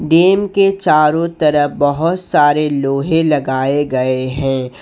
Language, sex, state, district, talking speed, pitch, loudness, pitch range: Hindi, male, Jharkhand, Ranchi, 125 wpm, 150 Hz, -14 LUFS, 135-165 Hz